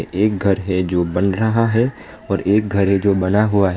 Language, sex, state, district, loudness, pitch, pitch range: Hindi, male, West Bengal, Alipurduar, -17 LUFS, 100 Hz, 95-105 Hz